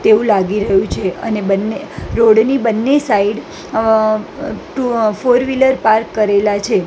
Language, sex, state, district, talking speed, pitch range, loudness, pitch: Gujarati, female, Gujarat, Gandhinagar, 150 wpm, 205-230 Hz, -14 LUFS, 220 Hz